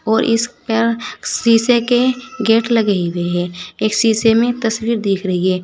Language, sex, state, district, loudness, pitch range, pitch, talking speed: Hindi, female, Uttar Pradesh, Saharanpur, -16 LUFS, 200-235 Hz, 225 Hz, 170 wpm